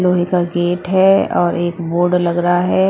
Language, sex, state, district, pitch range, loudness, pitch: Hindi, female, Haryana, Rohtak, 175-180 Hz, -15 LUFS, 175 Hz